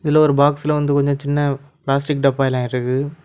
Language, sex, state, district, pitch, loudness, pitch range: Tamil, male, Tamil Nadu, Kanyakumari, 140 Hz, -18 LUFS, 135-150 Hz